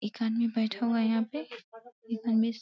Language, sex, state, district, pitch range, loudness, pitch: Hindi, female, Uttar Pradesh, Deoria, 225-235 Hz, -30 LUFS, 225 Hz